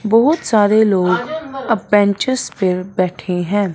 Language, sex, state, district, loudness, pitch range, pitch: Hindi, male, Punjab, Fazilka, -16 LUFS, 185-235 Hz, 205 Hz